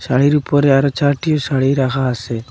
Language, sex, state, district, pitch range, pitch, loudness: Bengali, male, Assam, Hailakandi, 130-145 Hz, 135 Hz, -16 LUFS